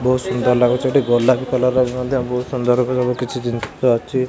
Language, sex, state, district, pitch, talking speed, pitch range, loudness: Odia, male, Odisha, Khordha, 125 Hz, 195 wpm, 125-130 Hz, -18 LUFS